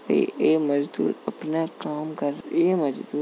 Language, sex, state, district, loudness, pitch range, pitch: Hindi, male, Uttar Pradesh, Jalaun, -25 LUFS, 145-160 Hz, 155 Hz